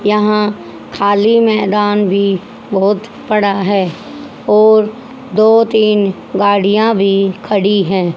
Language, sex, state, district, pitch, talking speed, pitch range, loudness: Hindi, female, Haryana, Jhajjar, 205 Hz, 105 wpm, 195-220 Hz, -12 LUFS